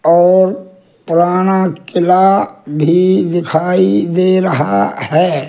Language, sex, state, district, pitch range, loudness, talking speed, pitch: Hindi, male, Rajasthan, Jaipur, 165-185 Hz, -12 LUFS, 85 wpm, 180 Hz